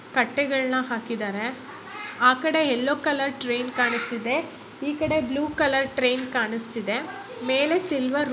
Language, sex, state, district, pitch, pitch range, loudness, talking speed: Kannada, female, Karnataka, Chamarajanagar, 260 Hz, 240-290 Hz, -24 LUFS, 120 wpm